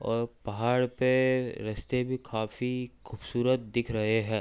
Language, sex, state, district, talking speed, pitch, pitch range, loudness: Hindi, male, Uttar Pradesh, Hamirpur, 135 wpm, 120 Hz, 110-125 Hz, -30 LUFS